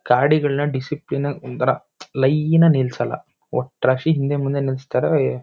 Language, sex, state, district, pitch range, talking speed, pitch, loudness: Kannada, male, Karnataka, Shimoga, 130-150 Hz, 120 wpm, 140 Hz, -20 LUFS